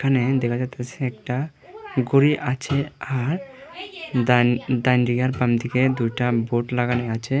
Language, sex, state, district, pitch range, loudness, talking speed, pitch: Bengali, male, Tripura, Dhalai, 120-140 Hz, -22 LUFS, 120 wpm, 125 Hz